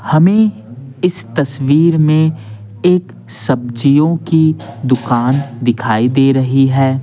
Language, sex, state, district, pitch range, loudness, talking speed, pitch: Hindi, male, Bihar, Patna, 120-155 Hz, -13 LUFS, 100 wpm, 135 Hz